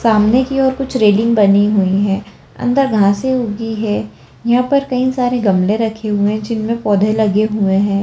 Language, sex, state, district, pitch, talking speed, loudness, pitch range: Kumaoni, female, Uttarakhand, Tehri Garhwal, 220 Hz, 195 wpm, -15 LUFS, 205-245 Hz